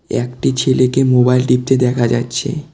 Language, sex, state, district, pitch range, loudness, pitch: Bengali, male, West Bengal, Cooch Behar, 125-130 Hz, -15 LUFS, 125 Hz